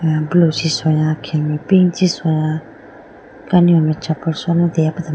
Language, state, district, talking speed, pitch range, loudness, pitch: Idu Mishmi, Arunachal Pradesh, Lower Dibang Valley, 140 wpm, 155-170 Hz, -16 LUFS, 160 Hz